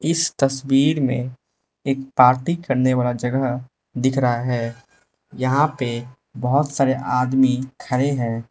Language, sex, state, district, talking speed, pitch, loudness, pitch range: Hindi, male, Manipur, Imphal West, 125 wpm, 130 Hz, -20 LUFS, 125-135 Hz